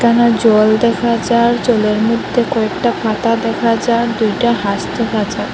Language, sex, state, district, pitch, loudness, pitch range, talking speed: Bengali, female, Assam, Hailakandi, 230 Hz, -14 LUFS, 215-235 Hz, 150 wpm